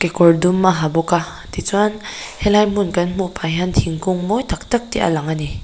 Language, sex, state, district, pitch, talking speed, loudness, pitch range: Mizo, female, Mizoram, Aizawl, 180 Hz, 235 wpm, -18 LUFS, 165-205 Hz